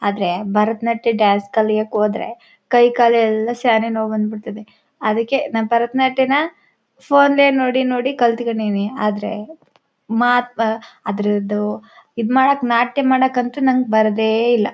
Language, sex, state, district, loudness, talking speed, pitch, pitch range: Kannada, female, Karnataka, Chamarajanagar, -17 LUFS, 120 wpm, 230 Hz, 215-255 Hz